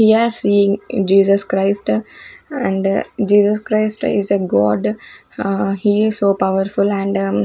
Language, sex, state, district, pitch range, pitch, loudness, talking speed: English, female, Chandigarh, Chandigarh, 195-205 Hz, 200 Hz, -16 LUFS, 135 wpm